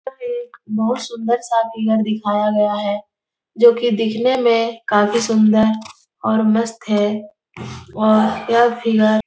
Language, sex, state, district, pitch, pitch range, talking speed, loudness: Hindi, female, Bihar, Jahanabad, 220 Hz, 215-235 Hz, 140 wpm, -17 LUFS